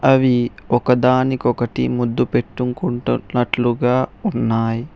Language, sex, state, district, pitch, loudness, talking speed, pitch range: Telugu, male, Telangana, Hyderabad, 120 Hz, -18 LUFS, 60 wpm, 115-125 Hz